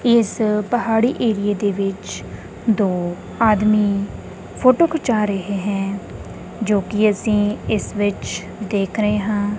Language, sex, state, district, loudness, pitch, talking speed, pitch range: Punjabi, female, Punjab, Kapurthala, -19 LUFS, 210 Hz, 120 wpm, 200-225 Hz